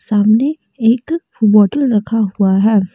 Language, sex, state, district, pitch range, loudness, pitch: Hindi, female, Jharkhand, Deoghar, 205-255 Hz, -14 LUFS, 215 Hz